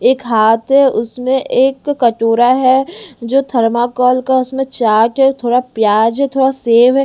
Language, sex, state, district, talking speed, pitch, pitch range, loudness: Hindi, female, Delhi, New Delhi, 160 wpm, 255 Hz, 235-270 Hz, -13 LUFS